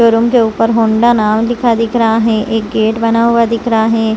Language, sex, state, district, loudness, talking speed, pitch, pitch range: Hindi, female, Chhattisgarh, Rajnandgaon, -12 LUFS, 230 wpm, 225 Hz, 220-230 Hz